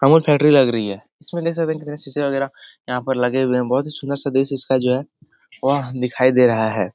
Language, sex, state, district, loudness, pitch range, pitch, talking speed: Hindi, male, Bihar, Jahanabad, -19 LUFS, 125-145 Hz, 135 Hz, 285 wpm